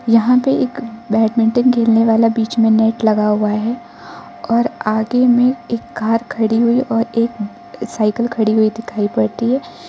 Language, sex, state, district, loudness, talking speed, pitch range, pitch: Hindi, female, Arunachal Pradesh, Lower Dibang Valley, -16 LUFS, 160 wpm, 220-235 Hz, 230 Hz